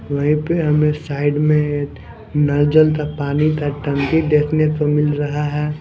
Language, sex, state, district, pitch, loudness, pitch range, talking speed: Hindi, male, Punjab, Kapurthala, 150 Hz, -17 LUFS, 145-150 Hz, 155 wpm